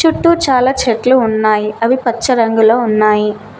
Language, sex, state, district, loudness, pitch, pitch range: Telugu, female, Telangana, Mahabubabad, -12 LUFS, 235 Hz, 215-260 Hz